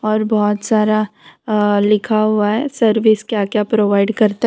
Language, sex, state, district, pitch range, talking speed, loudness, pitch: Hindi, female, Gujarat, Valsad, 210-220 Hz, 175 wpm, -15 LUFS, 215 Hz